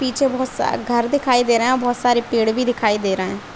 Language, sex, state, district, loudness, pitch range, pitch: Hindi, female, Uttarakhand, Uttarkashi, -18 LUFS, 225-255 Hz, 245 Hz